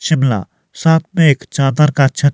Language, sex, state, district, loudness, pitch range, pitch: Hindi, male, Himachal Pradesh, Shimla, -14 LUFS, 135-155 Hz, 145 Hz